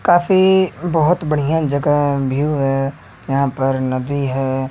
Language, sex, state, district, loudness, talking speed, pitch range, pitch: Hindi, male, Haryana, Rohtak, -17 LUFS, 125 wpm, 135-160 Hz, 140 Hz